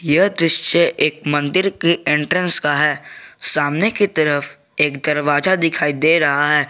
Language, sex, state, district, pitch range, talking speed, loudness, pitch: Hindi, male, Jharkhand, Garhwa, 145-170 Hz, 150 wpm, -17 LUFS, 155 Hz